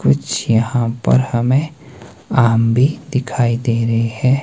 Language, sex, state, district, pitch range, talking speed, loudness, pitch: Hindi, male, Himachal Pradesh, Shimla, 115-130 Hz, 135 wpm, -16 LUFS, 120 Hz